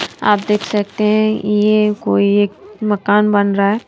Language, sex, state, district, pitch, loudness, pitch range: Hindi, female, Madhya Pradesh, Bhopal, 210 Hz, -15 LUFS, 205-210 Hz